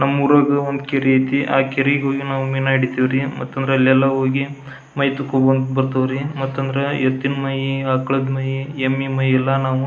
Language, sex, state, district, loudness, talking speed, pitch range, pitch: Kannada, male, Karnataka, Belgaum, -18 LUFS, 145 wpm, 135-140 Hz, 135 Hz